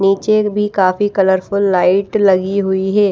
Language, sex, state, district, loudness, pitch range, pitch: Hindi, female, Odisha, Malkangiri, -14 LUFS, 190-205 Hz, 195 Hz